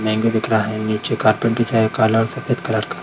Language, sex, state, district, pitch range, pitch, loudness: Hindi, male, Bihar, Darbhanga, 110-115 Hz, 110 Hz, -18 LUFS